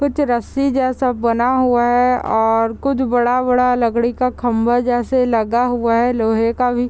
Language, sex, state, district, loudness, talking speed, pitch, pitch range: Hindi, female, Bihar, Muzaffarpur, -16 LUFS, 165 wpm, 245 Hz, 235-255 Hz